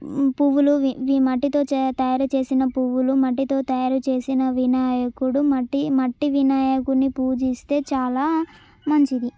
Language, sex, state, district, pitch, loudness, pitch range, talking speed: Telugu, female, Telangana, Karimnagar, 265 Hz, -21 LUFS, 260-280 Hz, 100 wpm